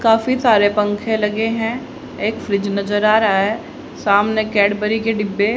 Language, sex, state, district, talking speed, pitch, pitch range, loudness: Hindi, female, Haryana, Charkhi Dadri, 160 wpm, 215 Hz, 205-225 Hz, -17 LUFS